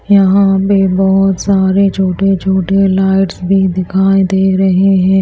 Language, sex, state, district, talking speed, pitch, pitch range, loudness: Hindi, female, Bihar, Kaimur, 140 wpm, 190 Hz, 190-195 Hz, -11 LUFS